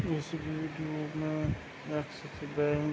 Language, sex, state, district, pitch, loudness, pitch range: Hindi, male, Bihar, Begusarai, 155 Hz, -35 LUFS, 150-155 Hz